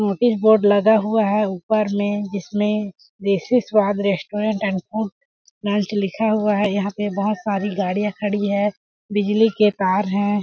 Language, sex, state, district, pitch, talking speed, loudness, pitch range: Hindi, female, Chhattisgarh, Balrampur, 205 Hz, 160 wpm, -20 LUFS, 200-215 Hz